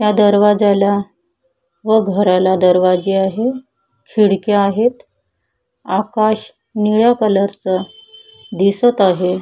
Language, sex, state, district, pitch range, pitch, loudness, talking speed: Marathi, female, Maharashtra, Chandrapur, 195-220 Hz, 205 Hz, -15 LUFS, 85 wpm